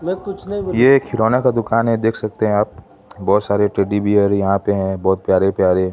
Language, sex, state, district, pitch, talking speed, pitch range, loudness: Hindi, male, Odisha, Khordha, 105 Hz, 190 wpm, 100-120 Hz, -17 LUFS